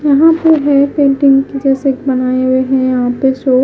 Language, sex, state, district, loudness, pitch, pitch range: Hindi, female, Himachal Pradesh, Shimla, -11 LUFS, 270 Hz, 260-280 Hz